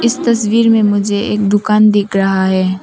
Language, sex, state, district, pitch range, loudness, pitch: Hindi, female, Arunachal Pradesh, Papum Pare, 195-220 Hz, -12 LUFS, 205 Hz